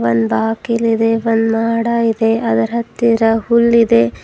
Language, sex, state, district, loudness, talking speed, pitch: Kannada, female, Karnataka, Bidar, -14 LUFS, 125 wpm, 225 Hz